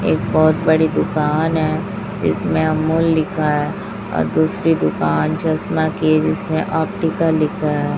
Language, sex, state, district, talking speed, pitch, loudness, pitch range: Hindi, female, Chhattisgarh, Raipur, 135 wpm, 160 Hz, -18 LUFS, 155-165 Hz